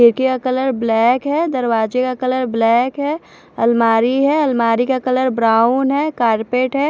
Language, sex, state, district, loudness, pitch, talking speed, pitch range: Hindi, female, Punjab, Fazilka, -16 LUFS, 255 Hz, 165 wpm, 230-265 Hz